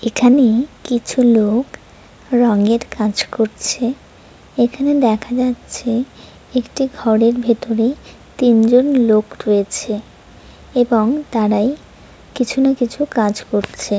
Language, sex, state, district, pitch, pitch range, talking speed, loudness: Bengali, female, West Bengal, Jalpaiguri, 240 Hz, 220-255 Hz, 95 wpm, -16 LUFS